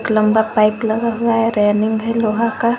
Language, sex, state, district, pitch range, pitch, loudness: Hindi, female, Jharkhand, Garhwa, 215-230 Hz, 220 Hz, -16 LUFS